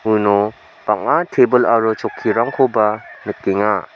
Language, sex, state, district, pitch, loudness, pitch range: Garo, male, Meghalaya, South Garo Hills, 110 Hz, -17 LUFS, 105-115 Hz